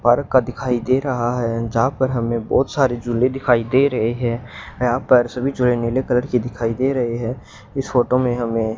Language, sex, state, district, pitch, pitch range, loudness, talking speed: Hindi, male, Haryana, Rohtak, 125 Hz, 115-130 Hz, -19 LUFS, 220 wpm